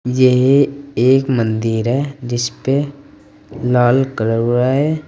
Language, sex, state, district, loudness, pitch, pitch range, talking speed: Hindi, male, Uttar Pradesh, Saharanpur, -16 LUFS, 130 Hz, 120-140 Hz, 120 wpm